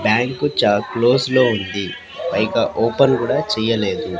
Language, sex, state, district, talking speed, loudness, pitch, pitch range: Telugu, female, Andhra Pradesh, Sri Satya Sai, 130 wpm, -18 LUFS, 115 Hz, 105-125 Hz